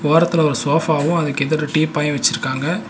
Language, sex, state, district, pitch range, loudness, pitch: Tamil, male, Tamil Nadu, Nilgiris, 145-160 Hz, -18 LUFS, 155 Hz